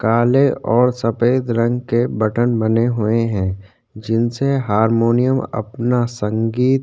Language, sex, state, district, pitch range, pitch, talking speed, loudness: Hindi, male, Chhattisgarh, Korba, 110-125 Hz, 115 Hz, 115 wpm, -17 LUFS